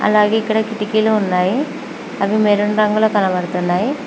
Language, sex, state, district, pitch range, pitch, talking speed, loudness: Telugu, female, Telangana, Mahabubabad, 195-220 Hz, 210 Hz, 120 wpm, -16 LUFS